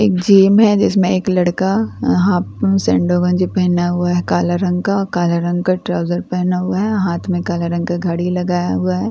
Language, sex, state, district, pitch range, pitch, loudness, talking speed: Hindi, female, Bihar, Katihar, 175-190 Hz, 180 Hz, -16 LUFS, 225 wpm